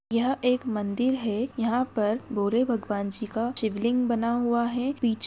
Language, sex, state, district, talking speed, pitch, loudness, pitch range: Hindi, female, Bihar, Purnia, 170 wpm, 235 Hz, -27 LUFS, 220-245 Hz